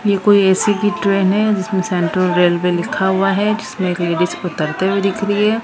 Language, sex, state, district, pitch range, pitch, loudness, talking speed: Hindi, female, Maharashtra, Mumbai Suburban, 180-205 Hz, 190 Hz, -16 LUFS, 215 wpm